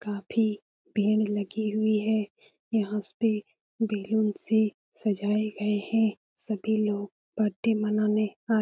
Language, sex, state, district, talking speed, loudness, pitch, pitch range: Hindi, female, Bihar, Lakhisarai, 120 wpm, -28 LUFS, 215 Hz, 210-220 Hz